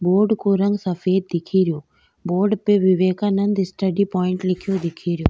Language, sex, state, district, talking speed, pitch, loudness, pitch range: Rajasthani, female, Rajasthan, Nagaur, 145 wpm, 190 Hz, -20 LUFS, 180-200 Hz